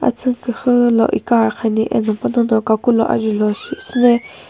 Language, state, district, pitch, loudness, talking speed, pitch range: Sumi, Nagaland, Kohima, 230 Hz, -16 LUFS, 105 wpm, 220-240 Hz